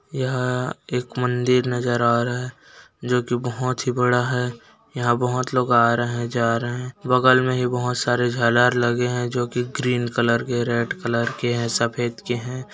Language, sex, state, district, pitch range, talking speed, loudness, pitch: Hindi, male, Bihar, Jamui, 120-125 Hz, 190 wpm, -21 LUFS, 125 Hz